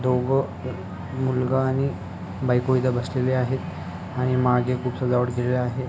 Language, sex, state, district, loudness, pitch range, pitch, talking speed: Marathi, male, Maharashtra, Sindhudurg, -24 LUFS, 125-130 Hz, 125 Hz, 130 wpm